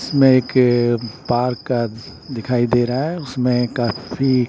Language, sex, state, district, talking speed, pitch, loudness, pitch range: Hindi, male, Bihar, Patna, 135 wpm, 125 Hz, -18 LUFS, 120-130 Hz